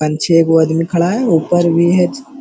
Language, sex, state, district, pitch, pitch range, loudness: Hindi, male, Bihar, Araria, 170 Hz, 165-180 Hz, -13 LUFS